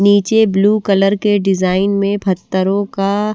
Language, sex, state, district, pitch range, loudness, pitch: Hindi, female, Bihar, West Champaran, 195-205 Hz, -14 LUFS, 200 Hz